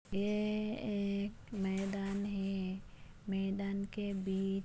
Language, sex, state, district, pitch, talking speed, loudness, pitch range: Hindi, female, Bihar, Sitamarhi, 200 Hz, 105 wpm, -38 LUFS, 195-205 Hz